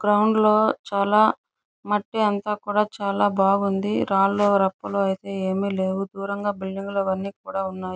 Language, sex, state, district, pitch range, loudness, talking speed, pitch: Telugu, female, Andhra Pradesh, Chittoor, 195-210 Hz, -23 LUFS, 145 wpm, 200 Hz